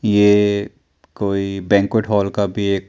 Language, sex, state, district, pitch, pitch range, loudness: Hindi, male, Chandigarh, Chandigarh, 100 Hz, 100-105 Hz, -17 LUFS